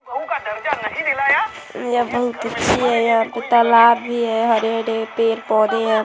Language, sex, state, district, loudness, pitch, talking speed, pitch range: Hindi, female, Bihar, Vaishali, -18 LUFS, 230 Hz, 110 wpm, 225-245 Hz